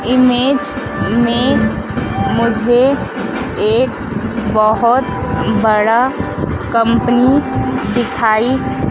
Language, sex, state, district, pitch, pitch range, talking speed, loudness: Hindi, female, Madhya Pradesh, Dhar, 245 Hz, 230-260 Hz, 60 wpm, -14 LUFS